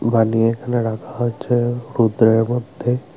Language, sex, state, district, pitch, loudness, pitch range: Bengali, male, Tripura, Unakoti, 120 Hz, -19 LUFS, 115-120 Hz